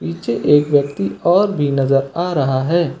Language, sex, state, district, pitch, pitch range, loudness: Hindi, male, Uttar Pradesh, Lucknow, 140 Hz, 130-165 Hz, -16 LUFS